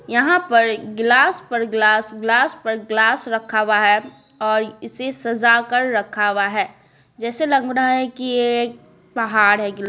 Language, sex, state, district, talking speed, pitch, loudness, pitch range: Hindi, female, Bihar, Patna, 165 wpm, 230 Hz, -18 LUFS, 215-250 Hz